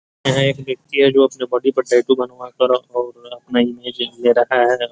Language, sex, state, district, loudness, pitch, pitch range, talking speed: Hindi, male, Bihar, East Champaran, -17 LUFS, 125 Hz, 120-130 Hz, 160 wpm